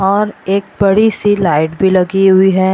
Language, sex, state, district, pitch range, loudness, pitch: Hindi, female, Bihar, Purnia, 190-205 Hz, -12 LUFS, 195 Hz